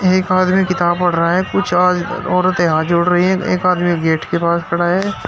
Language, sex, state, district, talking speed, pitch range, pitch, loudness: Hindi, male, Uttar Pradesh, Shamli, 225 wpm, 170-185 Hz, 180 Hz, -15 LUFS